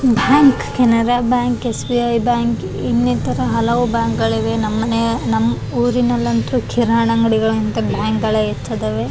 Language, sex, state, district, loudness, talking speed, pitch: Kannada, female, Karnataka, Raichur, -16 LUFS, 120 wpm, 215 Hz